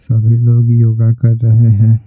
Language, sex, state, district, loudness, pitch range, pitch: Hindi, male, Bihar, Patna, -10 LUFS, 115-120 Hz, 115 Hz